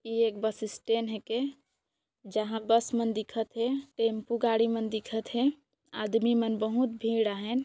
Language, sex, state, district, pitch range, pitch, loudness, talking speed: Sadri, female, Chhattisgarh, Jashpur, 220-235 Hz, 225 Hz, -30 LUFS, 165 wpm